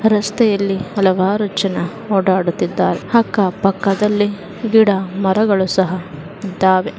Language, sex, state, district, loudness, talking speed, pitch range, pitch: Kannada, female, Karnataka, Mysore, -16 LUFS, 95 wpm, 190-210 Hz, 195 Hz